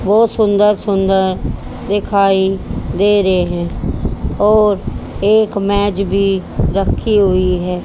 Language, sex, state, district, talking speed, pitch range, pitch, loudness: Hindi, female, Haryana, Charkhi Dadri, 105 wpm, 190-205 Hz, 200 Hz, -15 LUFS